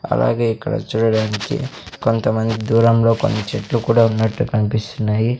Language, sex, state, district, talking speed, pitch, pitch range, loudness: Telugu, male, Andhra Pradesh, Sri Satya Sai, 110 wpm, 115 Hz, 110-120 Hz, -18 LUFS